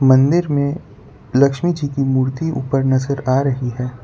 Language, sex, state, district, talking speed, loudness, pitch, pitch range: Hindi, male, Gujarat, Valsad, 165 wpm, -18 LUFS, 135 Hz, 130-145 Hz